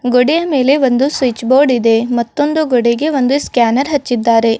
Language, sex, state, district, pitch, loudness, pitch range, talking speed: Kannada, female, Karnataka, Bidar, 255 Hz, -13 LUFS, 235-285 Hz, 145 wpm